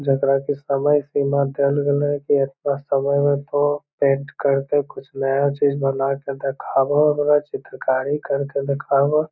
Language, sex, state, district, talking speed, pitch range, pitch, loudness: Magahi, male, Bihar, Lakhisarai, 175 wpm, 140-145 Hz, 140 Hz, -20 LUFS